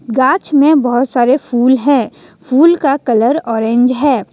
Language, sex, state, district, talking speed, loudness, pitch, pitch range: Hindi, female, Jharkhand, Ranchi, 150 wpm, -12 LUFS, 260 Hz, 240-285 Hz